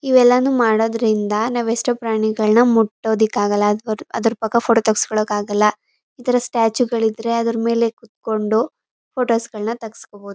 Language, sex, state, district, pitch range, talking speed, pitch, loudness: Kannada, female, Karnataka, Mysore, 215-235 Hz, 110 wpm, 225 Hz, -18 LUFS